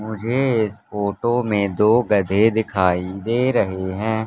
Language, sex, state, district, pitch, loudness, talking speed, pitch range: Hindi, male, Madhya Pradesh, Katni, 110 Hz, -20 LUFS, 140 wpm, 100-115 Hz